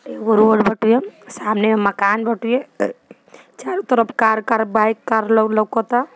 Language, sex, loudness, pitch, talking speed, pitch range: Bhojpuri, female, -17 LUFS, 220 Hz, 95 wpm, 215-230 Hz